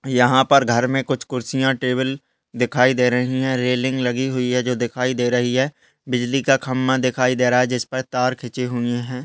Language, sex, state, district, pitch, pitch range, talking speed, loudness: Hindi, male, Uttarakhand, Uttarkashi, 125 Hz, 125-130 Hz, 210 wpm, -20 LUFS